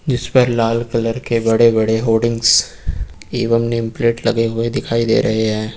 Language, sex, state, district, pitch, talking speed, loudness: Hindi, male, Uttar Pradesh, Lucknow, 115 Hz, 175 wpm, -16 LUFS